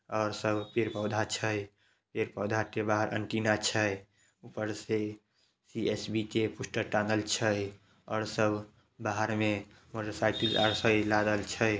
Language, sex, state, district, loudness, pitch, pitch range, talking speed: Maithili, male, Bihar, Samastipur, -31 LUFS, 110 Hz, 105-110 Hz, 110 wpm